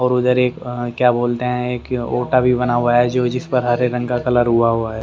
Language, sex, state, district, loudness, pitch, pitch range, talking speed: Hindi, male, Haryana, Rohtak, -17 LUFS, 125 Hz, 120-125 Hz, 260 wpm